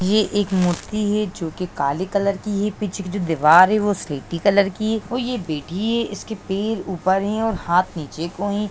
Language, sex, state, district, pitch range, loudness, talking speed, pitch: Hindi, female, Bihar, Saran, 180-210 Hz, -21 LUFS, 225 wpm, 200 Hz